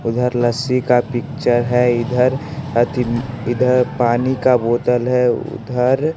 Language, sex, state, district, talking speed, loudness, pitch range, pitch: Hindi, male, Bihar, West Champaran, 135 wpm, -17 LUFS, 120-125 Hz, 125 Hz